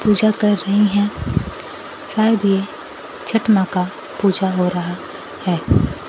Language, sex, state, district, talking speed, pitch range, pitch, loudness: Hindi, female, Bihar, Kaimur, 130 wpm, 185-210 Hz, 200 Hz, -18 LUFS